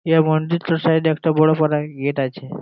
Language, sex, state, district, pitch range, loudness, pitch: Bengali, male, West Bengal, Jalpaiguri, 150-160 Hz, -19 LUFS, 155 Hz